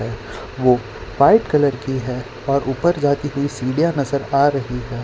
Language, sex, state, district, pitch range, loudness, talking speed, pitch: Hindi, male, Gujarat, Valsad, 125-145 Hz, -19 LUFS, 180 wpm, 135 Hz